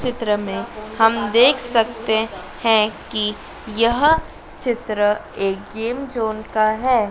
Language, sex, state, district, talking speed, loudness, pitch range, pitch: Hindi, female, Madhya Pradesh, Dhar, 120 wpm, -19 LUFS, 210-240 Hz, 220 Hz